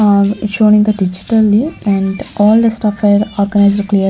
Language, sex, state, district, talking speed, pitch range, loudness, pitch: English, female, Chandigarh, Chandigarh, 190 wpm, 200-215 Hz, -12 LUFS, 205 Hz